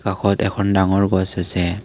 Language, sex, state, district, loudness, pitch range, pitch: Assamese, male, Assam, Kamrup Metropolitan, -18 LUFS, 95-100 Hz, 95 Hz